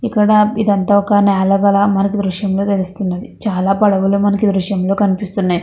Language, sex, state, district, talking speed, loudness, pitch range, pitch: Telugu, female, Andhra Pradesh, Krishna, 130 wpm, -14 LUFS, 195-205 Hz, 200 Hz